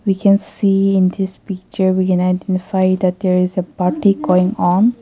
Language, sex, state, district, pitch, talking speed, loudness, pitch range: English, female, Nagaland, Kohima, 185 Hz, 190 wpm, -16 LUFS, 185-195 Hz